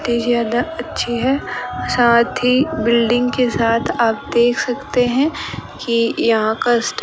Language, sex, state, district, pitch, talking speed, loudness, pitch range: Hindi, female, Rajasthan, Bikaner, 240 Hz, 155 wpm, -17 LUFS, 235-250 Hz